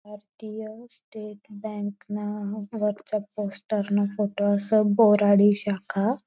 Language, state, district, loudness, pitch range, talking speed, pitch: Bhili, Maharashtra, Dhule, -24 LUFS, 205-215 Hz, 105 wpm, 210 Hz